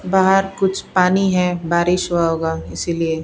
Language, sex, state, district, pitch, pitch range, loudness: Hindi, female, Bihar, Patna, 180 Hz, 170-190 Hz, -18 LUFS